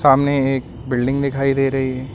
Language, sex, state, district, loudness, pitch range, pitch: Hindi, male, Uttar Pradesh, Lucknow, -19 LUFS, 130-135 Hz, 135 Hz